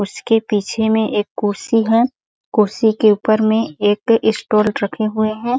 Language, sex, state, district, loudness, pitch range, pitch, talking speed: Hindi, female, Chhattisgarh, Sarguja, -17 LUFS, 210-225 Hz, 220 Hz, 160 wpm